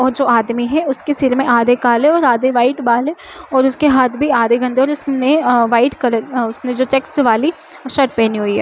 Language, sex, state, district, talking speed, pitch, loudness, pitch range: Chhattisgarhi, female, Chhattisgarh, Jashpur, 230 wpm, 260 Hz, -14 LUFS, 240-285 Hz